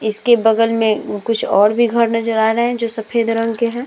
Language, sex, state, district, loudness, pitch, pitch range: Hindi, female, Bihar, Vaishali, -16 LUFS, 230 Hz, 220-235 Hz